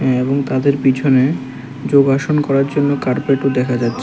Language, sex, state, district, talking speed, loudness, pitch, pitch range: Bengali, male, Tripura, West Tripura, 135 wpm, -15 LUFS, 135 Hz, 130-140 Hz